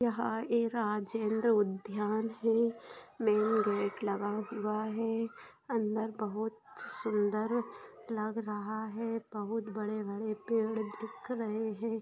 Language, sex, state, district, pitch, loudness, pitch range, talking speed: Hindi, female, Bihar, Saran, 220 Hz, -34 LUFS, 210-225 Hz, 110 wpm